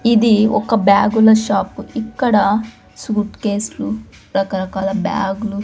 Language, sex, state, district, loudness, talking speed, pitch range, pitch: Telugu, female, Andhra Pradesh, Sri Satya Sai, -16 LUFS, 105 wpm, 195-220 Hz, 205 Hz